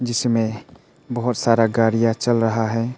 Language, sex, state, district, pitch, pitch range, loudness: Hindi, male, Arunachal Pradesh, Papum Pare, 115 Hz, 115-120 Hz, -20 LUFS